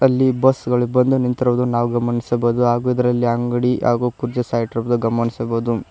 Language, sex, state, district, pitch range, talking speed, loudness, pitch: Kannada, male, Karnataka, Koppal, 120-125 Hz, 150 wpm, -18 LUFS, 120 Hz